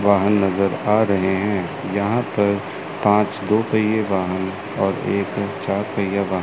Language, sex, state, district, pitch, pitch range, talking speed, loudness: Hindi, male, Chandigarh, Chandigarh, 100 Hz, 95-105 Hz, 150 wpm, -20 LUFS